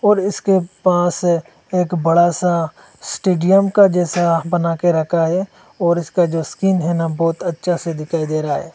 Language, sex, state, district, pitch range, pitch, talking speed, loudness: Hindi, male, Assam, Hailakandi, 165-185 Hz, 175 Hz, 180 wpm, -17 LUFS